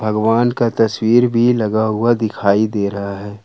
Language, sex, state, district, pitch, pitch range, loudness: Hindi, male, Jharkhand, Ranchi, 110 Hz, 105-120 Hz, -16 LUFS